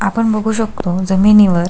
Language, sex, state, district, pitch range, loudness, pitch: Marathi, female, Maharashtra, Solapur, 185-220 Hz, -14 LUFS, 210 Hz